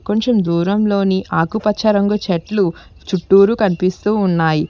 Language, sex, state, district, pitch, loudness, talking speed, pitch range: Telugu, female, Telangana, Hyderabad, 200 Hz, -16 LUFS, 100 wpm, 180-210 Hz